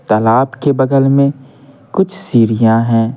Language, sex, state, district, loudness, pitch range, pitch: Hindi, male, Bihar, Patna, -13 LUFS, 115-140 Hz, 135 Hz